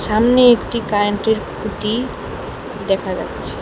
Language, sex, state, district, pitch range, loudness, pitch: Bengali, female, West Bengal, Alipurduar, 205-235 Hz, -18 LUFS, 215 Hz